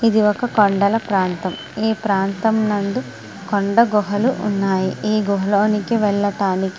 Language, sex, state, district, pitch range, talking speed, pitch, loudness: Telugu, female, Andhra Pradesh, Srikakulam, 195-220 Hz, 135 wpm, 205 Hz, -18 LUFS